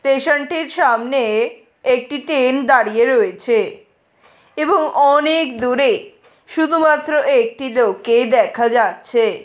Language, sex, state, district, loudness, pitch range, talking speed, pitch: Bengali, female, West Bengal, Malda, -16 LUFS, 255-415 Hz, 95 wpm, 295 Hz